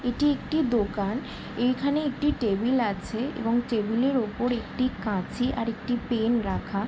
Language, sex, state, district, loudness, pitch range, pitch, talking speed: Bengali, female, West Bengal, Jalpaiguri, -27 LUFS, 220-255 Hz, 240 Hz, 140 wpm